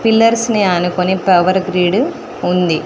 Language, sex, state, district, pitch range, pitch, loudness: Telugu, female, Telangana, Mahabubabad, 180-220 Hz, 185 Hz, -14 LUFS